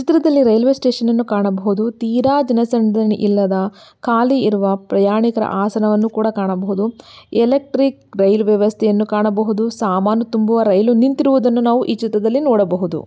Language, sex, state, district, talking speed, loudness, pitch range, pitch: Kannada, female, Karnataka, Belgaum, 115 wpm, -16 LUFS, 210-240 Hz, 220 Hz